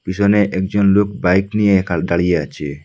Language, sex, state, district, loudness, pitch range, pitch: Bengali, male, Assam, Hailakandi, -16 LUFS, 90-100 Hz, 95 Hz